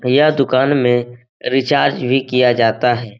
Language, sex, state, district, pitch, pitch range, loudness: Hindi, male, Bihar, Jahanabad, 125 Hz, 120-135 Hz, -15 LUFS